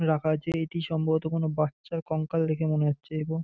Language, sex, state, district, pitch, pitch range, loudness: Bengali, male, West Bengal, North 24 Parganas, 160 Hz, 155-160 Hz, -28 LUFS